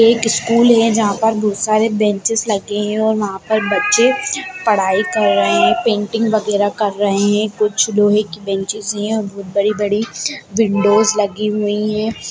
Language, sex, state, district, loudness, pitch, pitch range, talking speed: Hindi, female, Bihar, Darbhanga, -16 LUFS, 210 Hz, 205-225 Hz, 170 wpm